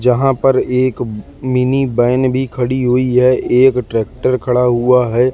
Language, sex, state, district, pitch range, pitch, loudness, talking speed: Hindi, male, Madhya Pradesh, Katni, 125-130 Hz, 125 Hz, -14 LUFS, 155 wpm